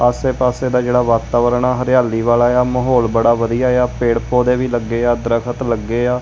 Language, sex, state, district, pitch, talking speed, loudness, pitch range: Punjabi, male, Punjab, Kapurthala, 120 Hz, 195 wpm, -15 LUFS, 115-125 Hz